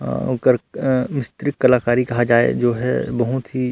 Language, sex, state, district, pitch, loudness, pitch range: Chhattisgarhi, male, Chhattisgarh, Rajnandgaon, 125 Hz, -19 LUFS, 120-130 Hz